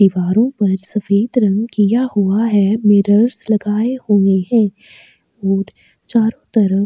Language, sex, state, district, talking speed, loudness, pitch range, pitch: Hindi, female, Bihar, Kishanganj, 130 wpm, -15 LUFS, 200-225 Hz, 210 Hz